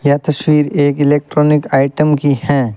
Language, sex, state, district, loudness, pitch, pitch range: Hindi, male, Rajasthan, Bikaner, -13 LUFS, 145 Hz, 140-150 Hz